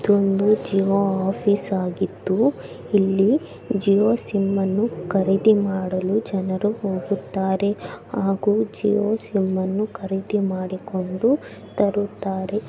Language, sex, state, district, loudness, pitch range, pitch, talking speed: Kannada, female, Karnataka, Raichur, -22 LUFS, 190-210 Hz, 195 Hz, 90 wpm